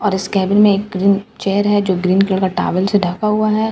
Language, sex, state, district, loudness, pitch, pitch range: Hindi, female, Bihar, Katihar, -15 LUFS, 200 Hz, 190-210 Hz